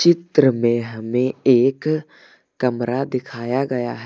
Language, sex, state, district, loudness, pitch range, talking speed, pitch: Hindi, male, Uttar Pradesh, Lucknow, -20 LUFS, 120-140 Hz, 120 wpm, 130 Hz